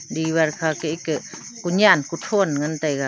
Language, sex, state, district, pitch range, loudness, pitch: Wancho, female, Arunachal Pradesh, Longding, 155-170 Hz, -21 LUFS, 160 Hz